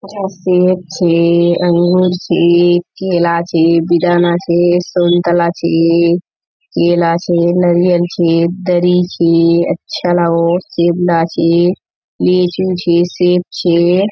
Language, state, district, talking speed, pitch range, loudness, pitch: Surjapuri, Bihar, Kishanganj, 100 wpm, 170-180 Hz, -12 LUFS, 175 Hz